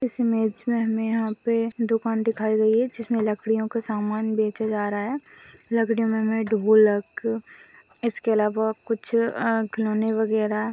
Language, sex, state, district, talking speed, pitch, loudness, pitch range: Hindi, female, Maharashtra, Chandrapur, 155 wpm, 220 Hz, -24 LUFS, 215-230 Hz